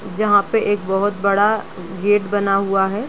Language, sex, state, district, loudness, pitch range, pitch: Hindi, female, Uttar Pradesh, Gorakhpur, -18 LUFS, 195-205 Hz, 200 Hz